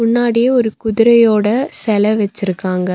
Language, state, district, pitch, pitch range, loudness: Tamil, Tamil Nadu, Nilgiris, 220 Hz, 210-235 Hz, -14 LUFS